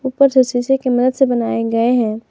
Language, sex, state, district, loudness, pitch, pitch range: Hindi, female, Jharkhand, Garhwa, -15 LUFS, 245 Hz, 230-260 Hz